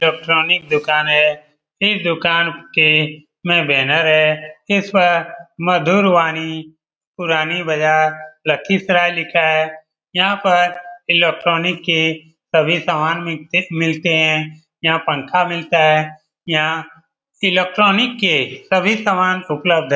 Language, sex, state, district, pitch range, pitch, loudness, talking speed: Hindi, male, Bihar, Lakhisarai, 155-175 Hz, 165 Hz, -15 LUFS, 125 wpm